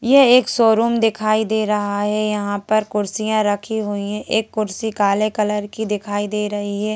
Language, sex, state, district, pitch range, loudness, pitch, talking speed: Hindi, female, Madhya Pradesh, Bhopal, 205-220 Hz, -19 LUFS, 215 Hz, 190 wpm